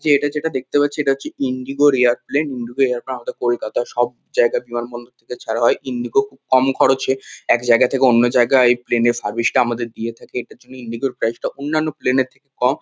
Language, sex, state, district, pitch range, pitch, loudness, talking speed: Bengali, male, West Bengal, Kolkata, 120-140 Hz, 130 Hz, -19 LUFS, 225 wpm